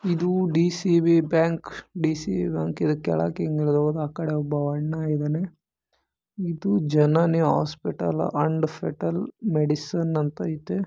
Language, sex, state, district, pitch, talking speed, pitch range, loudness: Kannada, male, Karnataka, Bellary, 155 Hz, 95 wpm, 150-170 Hz, -24 LUFS